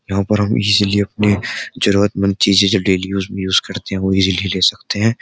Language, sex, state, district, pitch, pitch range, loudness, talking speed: Hindi, male, Uttar Pradesh, Jyotiba Phule Nagar, 100 Hz, 95-105 Hz, -16 LUFS, 220 wpm